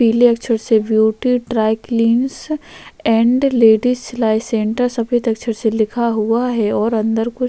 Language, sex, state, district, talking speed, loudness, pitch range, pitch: Hindi, female, Chhattisgarh, Korba, 145 wpm, -16 LUFS, 220-245 Hz, 230 Hz